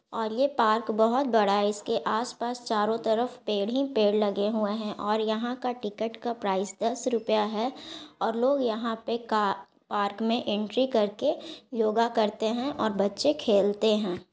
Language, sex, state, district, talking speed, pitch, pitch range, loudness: Hindi, female, Bihar, Gaya, 180 wpm, 220 Hz, 210-240 Hz, -27 LUFS